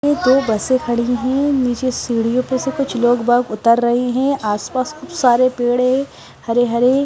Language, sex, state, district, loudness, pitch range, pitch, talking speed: Hindi, female, Himachal Pradesh, Shimla, -17 LUFS, 240-260 Hz, 250 Hz, 185 wpm